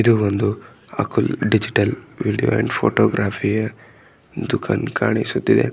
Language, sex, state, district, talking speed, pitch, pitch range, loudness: Kannada, male, Karnataka, Bidar, 105 wpm, 105 Hz, 100-110 Hz, -20 LUFS